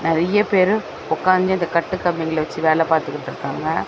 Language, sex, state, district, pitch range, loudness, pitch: Tamil, female, Tamil Nadu, Chennai, 160-185 Hz, -19 LUFS, 170 Hz